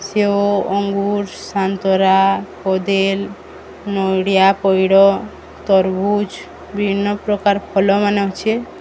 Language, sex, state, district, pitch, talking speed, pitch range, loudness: Odia, female, Odisha, Sambalpur, 195 Hz, 80 wpm, 195-205 Hz, -16 LUFS